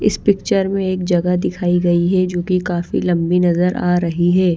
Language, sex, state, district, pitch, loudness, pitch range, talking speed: Hindi, female, Odisha, Malkangiri, 180 Hz, -17 LUFS, 175-185 Hz, 210 wpm